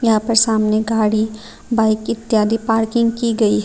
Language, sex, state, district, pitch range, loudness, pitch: Hindi, female, Tripura, Unakoti, 215-230 Hz, -17 LUFS, 225 Hz